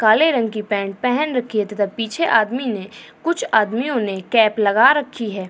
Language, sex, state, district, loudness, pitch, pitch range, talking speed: Hindi, female, Uttar Pradesh, Jyotiba Phule Nagar, -18 LUFS, 225 Hz, 210-250 Hz, 195 wpm